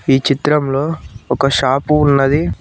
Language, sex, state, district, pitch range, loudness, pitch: Telugu, male, Telangana, Mahabubabad, 135-150 Hz, -15 LUFS, 140 Hz